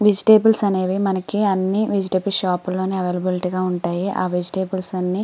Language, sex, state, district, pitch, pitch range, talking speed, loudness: Telugu, female, Andhra Pradesh, Srikakulam, 190 Hz, 185-200 Hz, 135 wpm, -19 LUFS